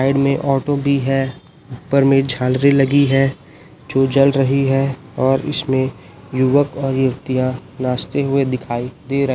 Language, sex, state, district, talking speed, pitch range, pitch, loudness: Hindi, male, Chhattisgarh, Raipur, 160 wpm, 130-140 Hz, 135 Hz, -17 LUFS